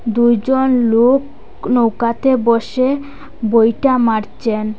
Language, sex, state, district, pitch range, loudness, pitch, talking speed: Bengali, female, Assam, Hailakandi, 230-265 Hz, -15 LUFS, 235 Hz, 75 wpm